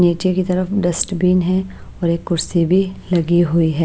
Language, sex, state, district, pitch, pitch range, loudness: Hindi, female, Maharashtra, Washim, 180 Hz, 170-185 Hz, -17 LUFS